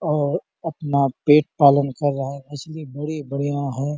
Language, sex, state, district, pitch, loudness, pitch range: Hindi, male, Chhattisgarh, Bastar, 145 Hz, -20 LUFS, 140-150 Hz